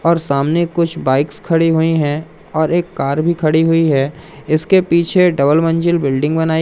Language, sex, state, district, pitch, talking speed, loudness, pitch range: Hindi, male, Madhya Pradesh, Umaria, 160 Hz, 180 wpm, -15 LUFS, 150-170 Hz